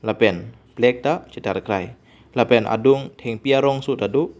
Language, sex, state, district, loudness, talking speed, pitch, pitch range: Karbi, male, Assam, Karbi Anglong, -20 LUFS, 150 wpm, 125 Hz, 115-135 Hz